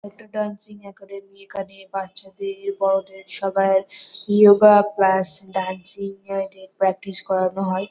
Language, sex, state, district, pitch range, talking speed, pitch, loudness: Bengali, female, West Bengal, Kolkata, 190-200 Hz, 105 wpm, 195 Hz, -20 LUFS